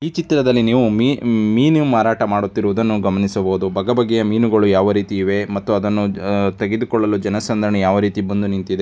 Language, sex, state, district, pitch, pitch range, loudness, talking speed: Kannada, male, Karnataka, Dharwad, 105 Hz, 100-115 Hz, -17 LUFS, 150 wpm